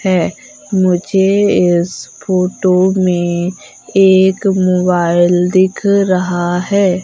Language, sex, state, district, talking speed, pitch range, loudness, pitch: Hindi, female, Madhya Pradesh, Umaria, 85 wpm, 180-195 Hz, -13 LUFS, 185 Hz